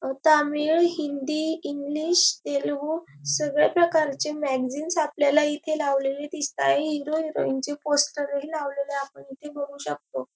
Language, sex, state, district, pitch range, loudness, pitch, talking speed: Marathi, female, Maharashtra, Dhule, 275-310 Hz, -25 LUFS, 290 Hz, 125 wpm